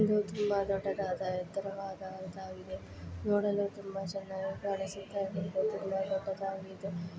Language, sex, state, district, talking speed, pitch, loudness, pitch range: Kannada, female, Karnataka, Bellary, 110 wpm, 195 Hz, -36 LUFS, 190-195 Hz